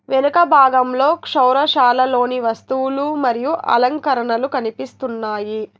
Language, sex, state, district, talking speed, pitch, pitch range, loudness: Telugu, female, Telangana, Hyderabad, 70 wpm, 255 Hz, 240-275 Hz, -16 LUFS